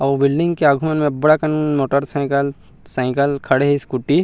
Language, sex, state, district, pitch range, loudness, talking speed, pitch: Chhattisgarhi, male, Chhattisgarh, Rajnandgaon, 140-150 Hz, -18 LUFS, 200 wpm, 140 Hz